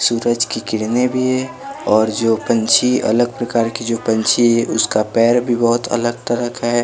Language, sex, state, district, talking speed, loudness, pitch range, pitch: Hindi, male, Bihar, West Champaran, 195 wpm, -16 LUFS, 115-120 Hz, 120 Hz